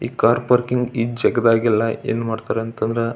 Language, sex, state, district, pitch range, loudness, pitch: Kannada, male, Karnataka, Belgaum, 115-120 Hz, -19 LUFS, 115 Hz